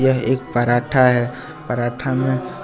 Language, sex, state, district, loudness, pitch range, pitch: Hindi, male, Jharkhand, Deoghar, -19 LUFS, 120-130 Hz, 125 Hz